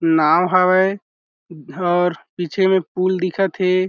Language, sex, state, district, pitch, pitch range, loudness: Chhattisgarhi, male, Chhattisgarh, Jashpur, 185 Hz, 175-185 Hz, -18 LUFS